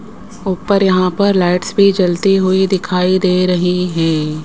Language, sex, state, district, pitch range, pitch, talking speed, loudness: Hindi, male, Rajasthan, Jaipur, 180-195 Hz, 185 Hz, 150 wpm, -14 LUFS